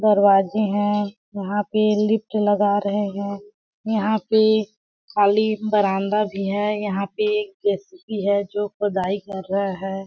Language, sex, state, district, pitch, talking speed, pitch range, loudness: Hindi, female, Chhattisgarh, Balrampur, 205 Hz, 145 wpm, 200-215 Hz, -21 LUFS